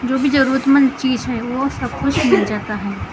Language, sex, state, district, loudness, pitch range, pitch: Hindi, female, Maharashtra, Gondia, -17 LUFS, 230-270 Hz, 260 Hz